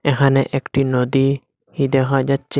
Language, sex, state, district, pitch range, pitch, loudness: Bengali, male, Assam, Hailakandi, 135-140 Hz, 135 Hz, -18 LUFS